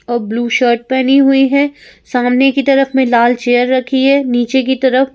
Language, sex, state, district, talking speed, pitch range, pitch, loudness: Hindi, female, Madhya Pradesh, Bhopal, 210 wpm, 245-270 Hz, 260 Hz, -12 LUFS